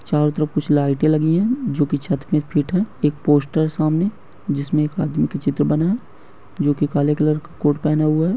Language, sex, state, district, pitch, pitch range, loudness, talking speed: Hindi, male, Bihar, Madhepura, 150 Hz, 145-160 Hz, -19 LUFS, 230 wpm